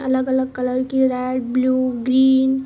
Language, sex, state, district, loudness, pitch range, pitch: Hindi, female, Jharkhand, Sahebganj, -19 LUFS, 255-265 Hz, 260 Hz